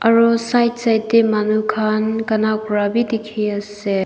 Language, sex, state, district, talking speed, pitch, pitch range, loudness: Nagamese, female, Nagaland, Dimapur, 165 wpm, 215 Hz, 215-230 Hz, -18 LUFS